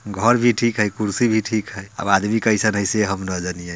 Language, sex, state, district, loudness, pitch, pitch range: Bhojpuri, male, Bihar, Muzaffarpur, -19 LUFS, 105 Hz, 95-110 Hz